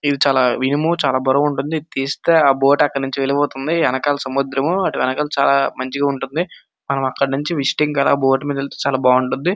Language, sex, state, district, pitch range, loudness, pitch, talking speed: Telugu, male, Andhra Pradesh, Srikakulam, 135-145 Hz, -18 LUFS, 140 Hz, 175 wpm